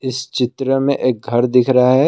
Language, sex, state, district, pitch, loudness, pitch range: Hindi, male, Assam, Kamrup Metropolitan, 130 Hz, -16 LUFS, 125-135 Hz